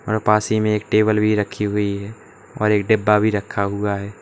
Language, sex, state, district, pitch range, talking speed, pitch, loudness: Hindi, male, Uttar Pradesh, Lalitpur, 100-110 Hz, 240 wpm, 105 Hz, -19 LUFS